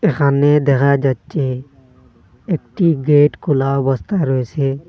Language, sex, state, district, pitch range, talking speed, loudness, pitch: Bengali, male, Assam, Hailakandi, 135-150 Hz, 100 wpm, -16 LUFS, 140 Hz